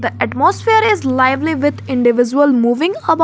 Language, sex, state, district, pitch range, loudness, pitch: English, female, Jharkhand, Garhwa, 255-325 Hz, -14 LUFS, 290 Hz